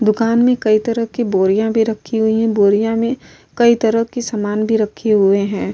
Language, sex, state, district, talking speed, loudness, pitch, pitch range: Hindi, female, Goa, North and South Goa, 190 wpm, -16 LUFS, 225 Hz, 215-230 Hz